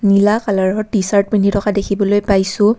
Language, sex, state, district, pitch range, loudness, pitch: Assamese, female, Assam, Kamrup Metropolitan, 200-210 Hz, -15 LUFS, 205 Hz